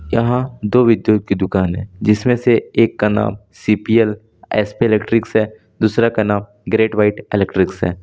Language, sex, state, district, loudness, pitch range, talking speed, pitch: Hindi, male, Jharkhand, Deoghar, -16 LUFS, 105-115 Hz, 170 wpm, 105 Hz